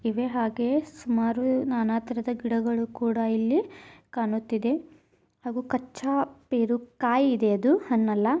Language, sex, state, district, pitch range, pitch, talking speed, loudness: Kannada, female, Karnataka, Belgaum, 230-260 Hz, 240 Hz, 100 wpm, -26 LUFS